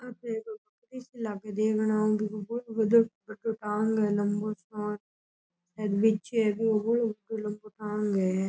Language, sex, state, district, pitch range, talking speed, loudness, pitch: Rajasthani, male, Rajasthan, Churu, 210-225 Hz, 50 wpm, -29 LUFS, 215 Hz